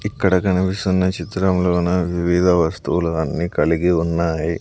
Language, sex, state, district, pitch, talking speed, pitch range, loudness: Telugu, male, Andhra Pradesh, Sri Satya Sai, 90 Hz, 90 wpm, 85-95 Hz, -19 LUFS